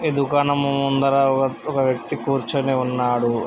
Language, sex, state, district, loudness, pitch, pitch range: Telugu, male, Andhra Pradesh, Krishna, -20 LUFS, 135 Hz, 130-140 Hz